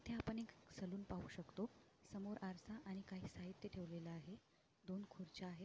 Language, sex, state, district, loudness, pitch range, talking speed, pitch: Marathi, female, Maharashtra, Sindhudurg, -52 LUFS, 185-205 Hz, 170 wpm, 190 Hz